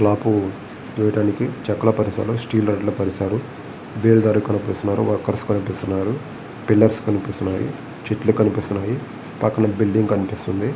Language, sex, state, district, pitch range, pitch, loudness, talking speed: Telugu, male, Andhra Pradesh, Visakhapatnam, 105-110 Hz, 105 Hz, -21 LUFS, 110 wpm